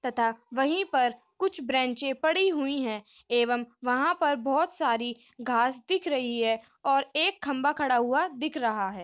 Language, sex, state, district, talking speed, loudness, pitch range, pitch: Hindi, female, Uttar Pradesh, Hamirpur, 165 wpm, -27 LUFS, 240-300 Hz, 260 Hz